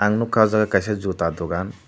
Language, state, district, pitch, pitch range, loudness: Kokborok, Tripura, Dhalai, 105 Hz, 95-110 Hz, -21 LUFS